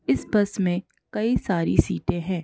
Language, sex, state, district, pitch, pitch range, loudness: Hindi, female, Madhya Pradesh, Bhopal, 190 Hz, 175-210 Hz, -24 LUFS